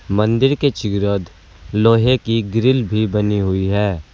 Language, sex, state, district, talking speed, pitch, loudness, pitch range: Hindi, male, Uttar Pradesh, Saharanpur, 145 wpm, 105 Hz, -17 LUFS, 100-115 Hz